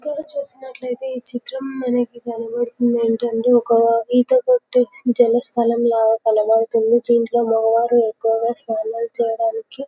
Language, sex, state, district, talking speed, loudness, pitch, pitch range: Telugu, female, Telangana, Karimnagar, 130 wpm, -19 LUFS, 235 Hz, 230-250 Hz